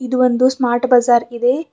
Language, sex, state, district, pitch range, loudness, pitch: Kannada, female, Karnataka, Bidar, 240-255 Hz, -15 LUFS, 250 Hz